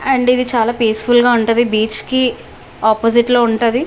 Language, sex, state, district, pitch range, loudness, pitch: Telugu, female, Andhra Pradesh, Visakhapatnam, 225-245 Hz, -14 LUFS, 235 Hz